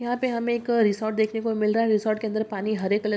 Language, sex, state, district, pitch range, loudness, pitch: Hindi, female, Bihar, Jamui, 215-230 Hz, -24 LUFS, 220 Hz